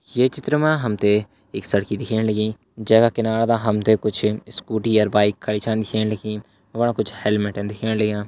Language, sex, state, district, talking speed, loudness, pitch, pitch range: Hindi, male, Uttarakhand, Uttarkashi, 195 wpm, -21 LUFS, 110 Hz, 105-115 Hz